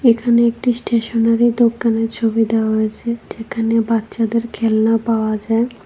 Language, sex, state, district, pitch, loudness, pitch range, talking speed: Bengali, female, Tripura, West Tripura, 230 Hz, -17 LUFS, 225-235 Hz, 125 wpm